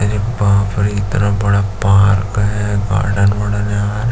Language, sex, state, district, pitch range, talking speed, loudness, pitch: Hindi, male, Chhattisgarh, Jashpur, 100-105 Hz, 145 wpm, -15 LUFS, 100 Hz